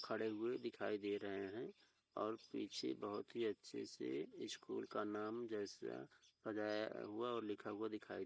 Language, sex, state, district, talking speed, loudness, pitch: Hindi, male, Uttar Pradesh, Hamirpur, 165 wpm, -47 LUFS, 110 Hz